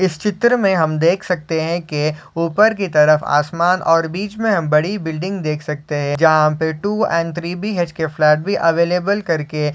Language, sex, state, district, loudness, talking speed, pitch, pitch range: Hindi, male, Maharashtra, Solapur, -17 LUFS, 195 wpm, 165 Hz, 155-190 Hz